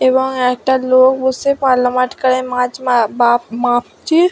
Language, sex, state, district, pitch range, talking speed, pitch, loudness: Bengali, female, West Bengal, Dakshin Dinajpur, 245-260 Hz, 125 wpm, 255 Hz, -14 LUFS